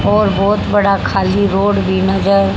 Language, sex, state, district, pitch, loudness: Hindi, female, Haryana, Charkhi Dadri, 195 Hz, -14 LUFS